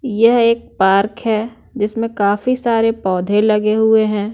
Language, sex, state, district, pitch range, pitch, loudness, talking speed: Hindi, female, Bihar, Patna, 210-230 Hz, 220 Hz, -15 LUFS, 150 wpm